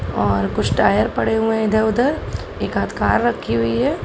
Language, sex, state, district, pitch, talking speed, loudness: Hindi, female, Uttar Pradesh, Gorakhpur, 220 Hz, 190 wpm, -19 LUFS